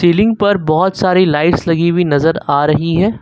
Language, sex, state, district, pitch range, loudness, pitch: Hindi, male, Uttar Pradesh, Lucknow, 155-185 Hz, -13 LUFS, 170 Hz